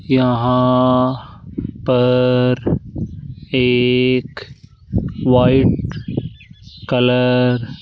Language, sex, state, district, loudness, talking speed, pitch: Hindi, male, Rajasthan, Jaipur, -16 LUFS, 45 wpm, 125 Hz